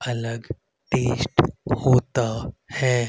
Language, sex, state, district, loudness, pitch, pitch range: Hindi, male, Haryana, Rohtak, -23 LUFS, 120 Hz, 115-130 Hz